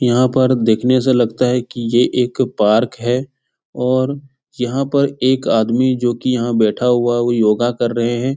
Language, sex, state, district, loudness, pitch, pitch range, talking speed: Hindi, male, Bihar, Jahanabad, -16 LUFS, 125 Hz, 120-130 Hz, 200 wpm